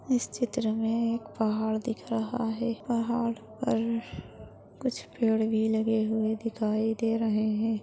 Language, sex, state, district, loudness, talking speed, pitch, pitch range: Hindi, female, Maharashtra, Aurangabad, -29 LUFS, 130 wpm, 225 Hz, 220-230 Hz